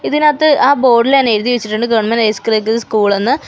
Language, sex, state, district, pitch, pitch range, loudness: Malayalam, female, Kerala, Kollam, 230 Hz, 220-270 Hz, -12 LUFS